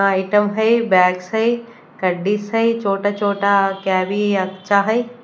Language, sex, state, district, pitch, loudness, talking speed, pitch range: Hindi, female, Chandigarh, Chandigarh, 205 Hz, -18 LUFS, 105 wpm, 195-225 Hz